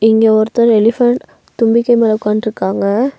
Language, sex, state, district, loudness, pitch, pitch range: Tamil, female, Tamil Nadu, Nilgiris, -13 LUFS, 225 Hz, 215-235 Hz